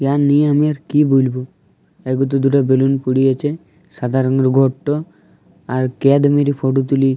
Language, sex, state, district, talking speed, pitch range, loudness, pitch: Bengali, male, Jharkhand, Jamtara, 175 wpm, 130-145 Hz, -16 LUFS, 135 Hz